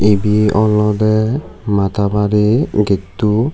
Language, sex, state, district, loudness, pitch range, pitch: Chakma, male, Tripura, West Tripura, -15 LUFS, 105-110 Hz, 105 Hz